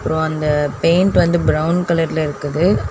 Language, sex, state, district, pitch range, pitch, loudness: Tamil, female, Tamil Nadu, Chennai, 155-170 Hz, 160 Hz, -17 LUFS